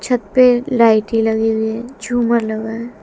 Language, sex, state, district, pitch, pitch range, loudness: Hindi, female, Haryana, Jhajjar, 230 Hz, 220-245 Hz, -16 LUFS